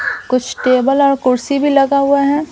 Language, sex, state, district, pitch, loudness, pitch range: Hindi, female, Bihar, Patna, 275 Hz, -14 LUFS, 255-280 Hz